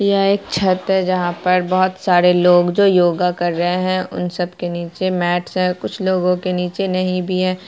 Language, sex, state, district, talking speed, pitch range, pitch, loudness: Hindi, female, Bihar, Araria, 210 wpm, 180-185 Hz, 180 Hz, -17 LUFS